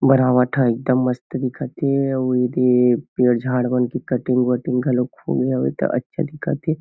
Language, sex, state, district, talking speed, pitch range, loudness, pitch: Chhattisgarhi, male, Chhattisgarh, Kabirdham, 175 wpm, 125-130 Hz, -20 LUFS, 125 Hz